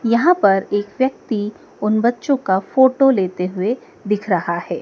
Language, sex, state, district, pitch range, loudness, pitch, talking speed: Hindi, female, Madhya Pradesh, Dhar, 195-255 Hz, -18 LUFS, 210 Hz, 160 wpm